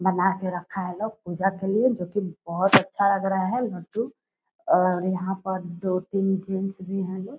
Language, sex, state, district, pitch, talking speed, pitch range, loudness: Hindi, female, Bihar, Purnia, 190 Hz, 205 wpm, 185-200 Hz, -25 LUFS